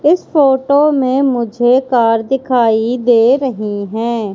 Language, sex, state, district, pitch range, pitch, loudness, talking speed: Hindi, female, Madhya Pradesh, Katni, 225-270 Hz, 245 Hz, -13 LUFS, 125 wpm